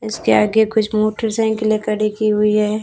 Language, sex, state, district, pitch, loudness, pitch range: Hindi, female, Rajasthan, Bikaner, 215 Hz, -17 LUFS, 215-220 Hz